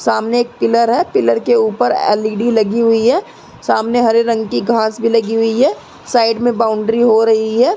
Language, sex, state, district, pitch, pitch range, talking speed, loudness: Hindi, female, Uttar Pradesh, Muzaffarnagar, 230 Hz, 225-240 Hz, 200 wpm, -14 LUFS